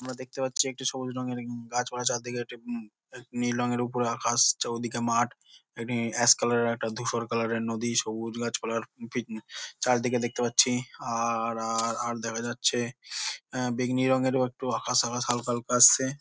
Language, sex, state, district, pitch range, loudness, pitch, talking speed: Bengali, male, West Bengal, Jhargram, 115-125 Hz, -27 LUFS, 120 Hz, 180 wpm